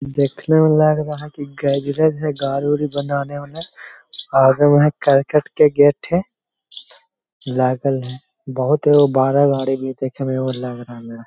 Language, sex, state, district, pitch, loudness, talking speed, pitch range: Hindi, male, Bihar, Jahanabad, 140 Hz, -17 LUFS, 170 wpm, 135-150 Hz